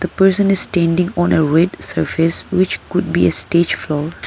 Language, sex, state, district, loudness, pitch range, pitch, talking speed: English, female, Arunachal Pradesh, Papum Pare, -16 LUFS, 165-185 Hz, 170 Hz, 195 wpm